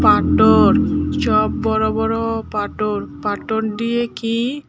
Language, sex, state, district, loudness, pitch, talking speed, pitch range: Bengali, female, Tripura, Dhalai, -18 LUFS, 225 Hz, 115 wpm, 220-230 Hz